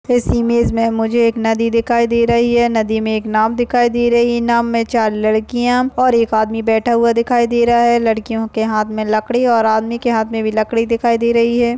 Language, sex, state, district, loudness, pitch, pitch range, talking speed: Hindi, female, Maharashtra, Sindhudurg, -15 LUFS, 235 Hz, 225-235 Hz, 235 wpm